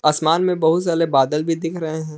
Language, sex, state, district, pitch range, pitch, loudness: Hindi, male, Jharkhand, Palamu, 155-165 Hz, 160 Hz, -19 LUFS